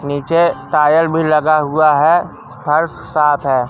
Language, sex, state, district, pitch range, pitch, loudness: Hindi, male, Madhya Pradesh, Katni, 145-160 Hz, 150 Hz, -14 LUFS